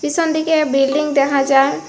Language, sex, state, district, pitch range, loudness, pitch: Bengali, female, Assam, Hailakandi, 275-315 Hz, -15 LUFS, 290 Hz